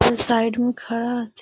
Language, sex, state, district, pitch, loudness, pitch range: Magahi, female, Bihar, Gaya, 235 Hz, -22 LUFS, 230-245 Hz